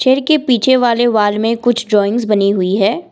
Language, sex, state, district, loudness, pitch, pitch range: Hindi, female, Assam, Kamrup Metropolitan, -13 LUFS, 235 Hz, 205-260 Hz